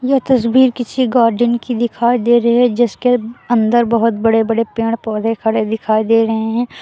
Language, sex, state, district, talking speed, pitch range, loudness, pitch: Hindi, female, Uttar Pradesh, Lucknow, 185 wpm, 225-240 Hz, -15 LUFS, 235 Hz